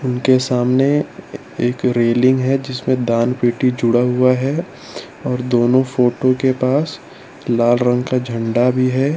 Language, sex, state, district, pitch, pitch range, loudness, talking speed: Hindi, male, Gujarat, Valsad, 125 Hz, 120-130 Hz, -16 LUFS, 145 wpm